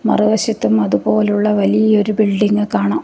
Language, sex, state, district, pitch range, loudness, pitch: Malayalam, female, Kerala, Kasaragod, 175-215 Hz, -15 LUFS, 210 Hz